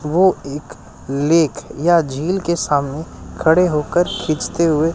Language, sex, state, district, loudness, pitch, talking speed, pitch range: Hindi, male, Bihar, West Champaran, -17 LUFS, 155 Hz, 145 wpm, 145-170 Hz